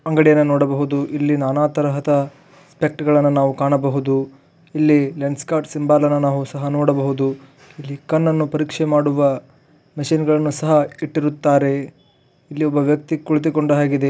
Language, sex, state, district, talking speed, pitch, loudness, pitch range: Kannada, male, Karnataka, Raichur, 105 wpm, 145 Hz, -18 LUFS, 140-155 Hz